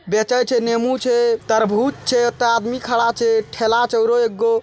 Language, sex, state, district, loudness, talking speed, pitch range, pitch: Hindi, male, Bihar, Araria, -18 LUFS, 195 wpm, 225-240 Hz, 235 Hz